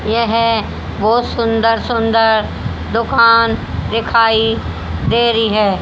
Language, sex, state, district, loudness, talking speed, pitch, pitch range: Hindi, female, Haryana, Charkhi Dadri, -14 LUFS, 95 wpm, 225 Hz, 225-230 Hz